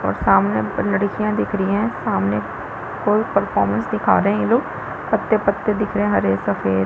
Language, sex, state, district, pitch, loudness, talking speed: Hindi, female, Chhattisgarh, Balrampur, 205 Hz, -19 LUFS, 175 wpm